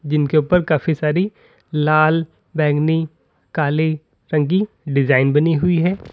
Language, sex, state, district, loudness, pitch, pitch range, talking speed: Hindi, male, Uttar Pradesh, Lalitpur, -18 LUFS, 155 Hz, 150-165 Hz, 125 wpm